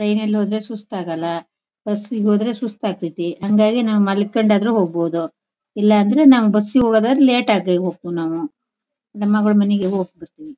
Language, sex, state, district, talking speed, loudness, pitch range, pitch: Kannada, female, Karnataka, Shimoga, 145 wpm, -17 LUFS, 185-225 Hz, 210 Hz